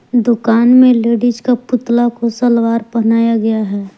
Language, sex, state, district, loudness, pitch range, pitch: Hindi, female, Jharkhand, Palamu, -13 LUFS, 225-240 Hz, 235 Hz